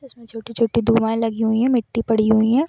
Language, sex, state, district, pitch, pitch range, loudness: Hindi, female, Jharkhand, Sahebganj, 230 Hz, 225-235 Hz, -19 LUFS